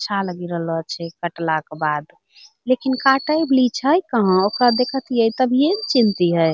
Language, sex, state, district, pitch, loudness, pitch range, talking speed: Angika, female, Bihar, Bhagalpur, 230 Hz, -19 LUFS, 170-265 Hz, 185 wpm